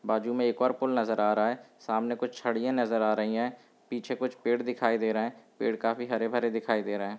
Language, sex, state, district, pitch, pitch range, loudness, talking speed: Hindi, male, Bihar, Samastipur, 115 Hz, 110-125 Hz, -29 LUFS, 250 wpm